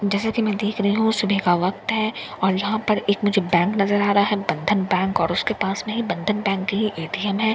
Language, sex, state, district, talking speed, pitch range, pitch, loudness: Hindi, female, Bihar, Katihar, 260 wpm, 195-215 Hz, 205 Hz, -21 LUFS